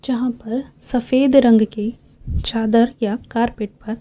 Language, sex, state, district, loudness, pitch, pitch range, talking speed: Hindi, female, Chhattisgarh, Raipur, -19 LUFS, 235 Hz, 225-250 Hz, 135 wpm